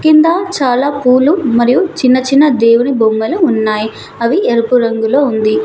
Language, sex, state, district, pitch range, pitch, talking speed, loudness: Telugu, female, Telangana, Mahabubabad, 230-285 Hz, 250 Hz, 140 wpm, -11 LUFS